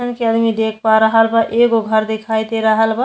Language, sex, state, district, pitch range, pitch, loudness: Bhojpuri, female, Uttar Pradesh, Deoria, 220-230 Hz, 225 Hz, -15 LUFS